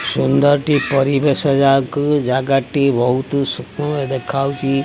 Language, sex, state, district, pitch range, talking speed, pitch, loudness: Odia, male, Odisha, Khordha, 135-145 Hz, 100 wpm, 140 Hz, -16 LUFS